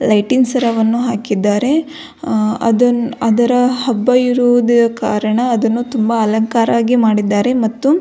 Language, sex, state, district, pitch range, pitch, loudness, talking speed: Kannada, female, Karnataka, Belgaum, 225-250 Hz, 235 Hz, -14 LUFS, 95 wpm